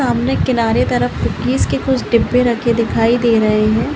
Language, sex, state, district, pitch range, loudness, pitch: Hindi, female, Bihar, Madhepura, 225-240 Hz, -15 LUFS, 235 Hz